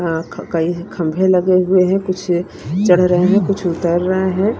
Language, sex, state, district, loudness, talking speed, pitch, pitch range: Hindi, female, Punjab, Kapurthala, -16 LUFS, 180 wpm, 180 Hz, 175-190 Hz